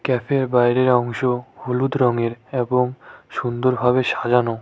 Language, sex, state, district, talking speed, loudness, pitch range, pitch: Bengali, male, West Bengal, Cooch Behar, 115 wpm, -20 LUFS, 120-130 Hz, 125 Hz